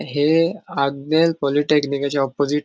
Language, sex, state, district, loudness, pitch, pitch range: Konkani, male, Goa, North and South Goa, -19 LUFS, 145 Hz, 140-155 Hz